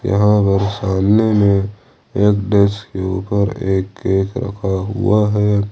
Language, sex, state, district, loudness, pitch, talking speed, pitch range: Hindi, male, Jharkhand, Ranchi, -16 LUFS, 100 Hz, 135 wpm, 95-105 Hz